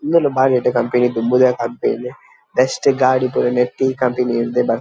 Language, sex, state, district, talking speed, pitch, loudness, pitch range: Tulu, male, Karnataka, Dakshina Kannada, 160 wpm, 125 Hz, -17 LUFS, 120-130 Hz